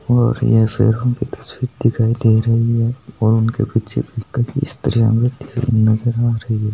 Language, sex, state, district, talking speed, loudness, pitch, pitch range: Hindi, male, Rajasthan, Nagaur, 170 wpm, -17 LUFS, 115 Hz, 115-125 Hz